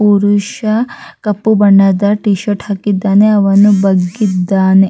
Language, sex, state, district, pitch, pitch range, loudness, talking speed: Kannada, female, Karnataka, Raichur, 205 Hz, 195-210 Hz, -11 LUFS, 100 wpm